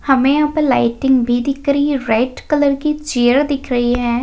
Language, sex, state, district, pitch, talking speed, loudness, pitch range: Hindi, female, Maharashtra, Pune, 270 Hz, 210 wpm, -16 LUFS, 245-285 Hz